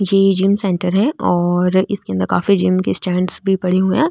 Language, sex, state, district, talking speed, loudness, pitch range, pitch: Marwari, female, Rajasthan, Nagaur, 220 wpm, -16 LUFS, 180-195 Hz, 190 Hz